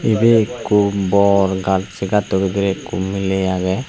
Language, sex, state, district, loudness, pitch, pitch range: Chakma, male, Tripura, Unakoti, -17 LUFS, 100 Hz, 95-105 Hz